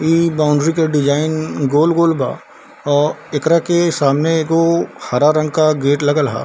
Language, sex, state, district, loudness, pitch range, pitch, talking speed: Hindi, male, Bihar, Darbhanga, -15 LUFS, 145-165 Hz, 155 Hz, 160 wpm